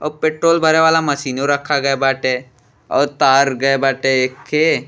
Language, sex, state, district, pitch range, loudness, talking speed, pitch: Bhojpuri, male, Uttar Pradesh, Deoria, 130-150 Hz, -16 LUFS, 170 wpm, 135 Hz